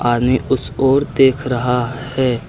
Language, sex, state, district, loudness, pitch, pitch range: Hindi, male, Uttar Pradesh, Lucknow, -16 LUFS, 130 Hz, 125-135 Hz